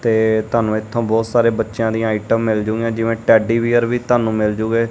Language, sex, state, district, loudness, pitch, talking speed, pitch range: Punjabi, male, Punjab, Kapurthala, -17 LUFS, 115 Hz, 210 wpm, 110-115 Hz